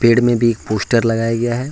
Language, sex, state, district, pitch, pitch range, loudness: Hindi, male, Jharkhand, Ranchi, 115 Hz, 115-120 Hz, -16 LUFS